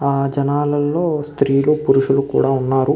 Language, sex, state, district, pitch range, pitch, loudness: Telugu, male, Andhra Pradesh, Krishna, 135-145 Hz, 140 Hz, -17 LUFS